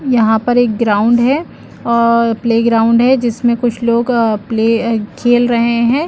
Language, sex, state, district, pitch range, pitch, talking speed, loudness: Hindi, female, Chhattisgarh, Bilaspur, 230-240 Hz, 235 Hz, 180 wpm, -13 LUFS